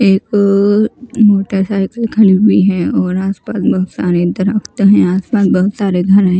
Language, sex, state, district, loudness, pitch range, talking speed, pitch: Hindi, female, Maharashtra, Mumbai Suburban, -12 LUFS, 190-210 Hz, 150 wpm, 195 Hz